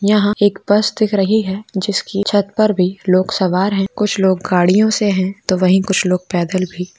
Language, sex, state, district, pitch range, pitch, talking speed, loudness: Hindi, male, Rajasthan, Churu, 185-205 Hz, 195 Hz, 195 wpm, -16 LUFS